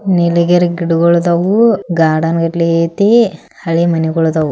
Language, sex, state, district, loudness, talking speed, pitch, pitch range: Kannada, female, Karnataka, Belgaum, -12 LUFS, 120 wpm, 170 Hz, 165-175 Hz